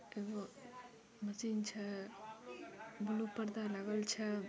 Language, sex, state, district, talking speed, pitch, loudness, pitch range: Hindi, female, Bihar, Samastipur, 95 wpm, 215 Hz, -43 LUFS, 205-220 Hz